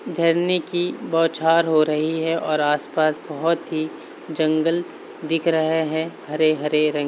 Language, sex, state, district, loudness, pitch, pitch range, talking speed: Hindi, male, Uttar Pradesh, Varanasi, -21 LUFS, 160 Hz, 155-165 Hz, 150 wpm